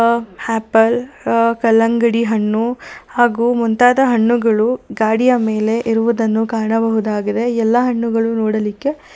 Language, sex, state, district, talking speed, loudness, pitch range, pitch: Kannada, female, Karnataka, Bangalore, 100 wpm, -16 LUFS, 225-240 Hz, 230 Hz